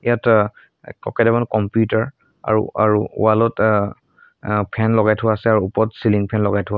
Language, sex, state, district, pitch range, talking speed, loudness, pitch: Assamese, male, Assam, Sonitpur, 105-115 Hz, 170 wpm, -18 LUFS, 110 Hz